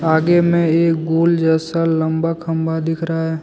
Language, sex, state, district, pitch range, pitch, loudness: Hindi, male, Jharkhand, Deoghar, 160-165 Hz, 165 Hz, -17 LUFS